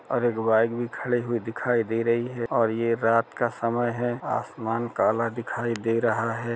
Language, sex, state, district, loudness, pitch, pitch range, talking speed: Hindi, male, Chhattisgarh, Kabirdham, -26 LUFS, 115 Hz, 115-120 Hz, 190 wpm